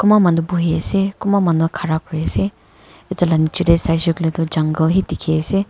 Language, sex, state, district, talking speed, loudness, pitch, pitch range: Nagamese, female, Nagaland, Kohima, 230 wpm, -17 LUFS, 165 Hz, 160-180 Hz